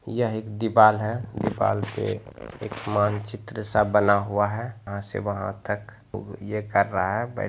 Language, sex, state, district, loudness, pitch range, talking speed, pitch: Hindi, male, Bihar, Muzaffarpur, -25 LUFS, 100-110 Hz, 190 wpm, 105 Hz